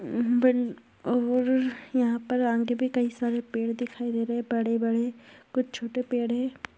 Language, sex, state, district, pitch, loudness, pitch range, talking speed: Hindi, female, Maharashtra, Chandrapur, 240 Hz, -27 LUFS, 235-250 Hz, 205 wpm